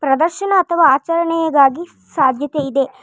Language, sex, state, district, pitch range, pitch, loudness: Kannada, female, Karnataka, Bangalore, 275-335 Hz, 315 Hz, -15 LUFS